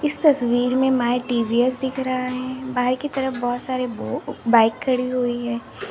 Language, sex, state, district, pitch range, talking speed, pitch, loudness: Hindi, female, Uttar Pradesh, Lalitpur, 245-260 Hz, 170 wpm, 255 Hz, -21 LUFS